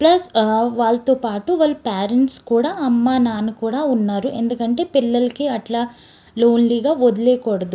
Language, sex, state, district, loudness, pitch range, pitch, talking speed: Telugu, female, Andhra Pradesh, Srikakulam, -18 LUFS, 230-265 Hz, 240 Hz, 115 wpm